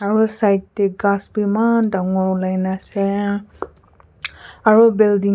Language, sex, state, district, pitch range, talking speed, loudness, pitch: Nagamese, female, Nagaland, Kohima, 195-215 Hz, 125 wpm, -17 LUFS, 200 Hz